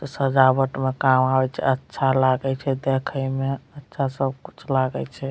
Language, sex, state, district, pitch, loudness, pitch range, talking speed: Maithili, male, Bihar, Madhepura, 135 Hz, -22 LUFS, 130-135 Hz, 180 wpm